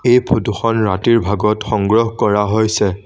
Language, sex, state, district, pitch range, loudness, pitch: Assamese, male, Assam, Sonitpur, 105-115 Hz, -15 LUFS, 110 Hz